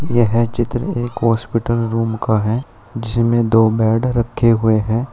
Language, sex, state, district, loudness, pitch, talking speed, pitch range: Hindi, male, Uttar Pradesh, Shamli, -17 LUFS, 115 Hz, 150 wpm, 110-120 Hz